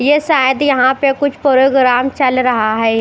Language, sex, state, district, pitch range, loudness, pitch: Hindi, female, Chandigarh, Chandigarh, 250-280 Hz, -13 LUFS, 265 Hz